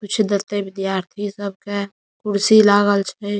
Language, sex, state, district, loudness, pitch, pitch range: Maithili, male, Bihar, Saharsa, -19 LUFS, 205 Hz, 200-205 Hz